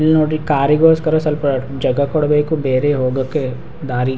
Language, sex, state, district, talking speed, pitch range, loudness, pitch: Kannada, male, Karnataka, Raichur, 160 wpm, 135-155 Hz, -16 LUFS, 145 Hz